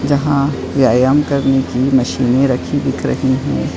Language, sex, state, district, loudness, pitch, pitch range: Hindi, female, Uttar Pradesh, Etah, -15 LUFS, 135 Hz, 130-140 Hz